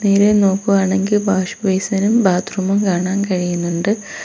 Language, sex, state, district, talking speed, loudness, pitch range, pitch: Malayalam, female, Kerala, Kollam, 100 wpm, -16 LUFS, 190-205 Hz, 195 Hz